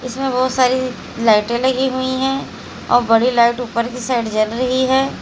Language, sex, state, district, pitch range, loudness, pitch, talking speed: Hindi, female, Uttar Pradesh, Lalitpur, 235-260 Hz, -17 LUFS, 250 Hz, 185 wpm